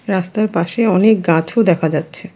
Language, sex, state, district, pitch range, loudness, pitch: Bengali, female, West Bengal, Alipurduar, 170-215 Hz, -15 LUFS, 185 Hz